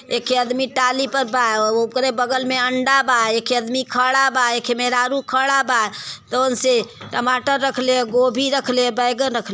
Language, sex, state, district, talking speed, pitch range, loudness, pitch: Bhojpuri, female, Uttar Pradesh, Varanasi, 200 wpm, 245-260 Hz, -18 LUFS, 255 Hz